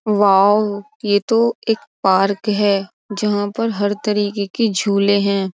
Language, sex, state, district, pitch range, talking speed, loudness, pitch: Hindi, female, Uttar Pradesh, Jyotiba Phule Nagar, 200-215 Hz, 140 wpm, -17 LUFS, 205 Hz